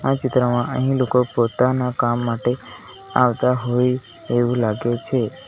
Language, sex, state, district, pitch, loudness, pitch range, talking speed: Gujarati, male, Gujarat, Valsad, 125 Hz, -20 LUFS, 120-130 Hz, 130 wpm